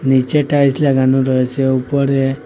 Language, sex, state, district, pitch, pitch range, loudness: Bengali, male, Assam, Hailakandi, 135 Hz, 130-140 Hz, -14 LUFS